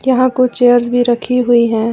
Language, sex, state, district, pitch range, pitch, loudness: Hindi, female, Jharkhand, Ranchi, 240-255 Hz, 245 Hz, -12 LUFS